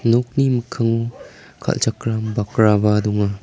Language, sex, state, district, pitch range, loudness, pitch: Garo, male, Meghalaya, South Garo Hills, 105-120 Hz, -19 LUFS, 115 Hz